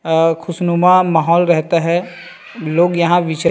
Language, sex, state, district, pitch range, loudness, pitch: Hindi, male, Chhattisgarh, Rajnandgaon, 165-175 Hz, -14 LUFS, 170 Hz